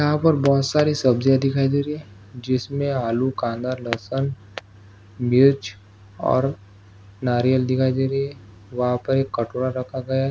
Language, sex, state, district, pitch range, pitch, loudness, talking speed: Hindi, male, Maharashtra, Solapur, 115-135 Hz, 130 Hz, -21 LUFS, 155 wpm